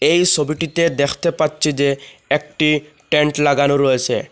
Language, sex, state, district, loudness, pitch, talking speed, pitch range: Bengali, male, Assam, Hailakandi, -17 LUFS, 150 Hz, 125 wpm, 140-155 Hz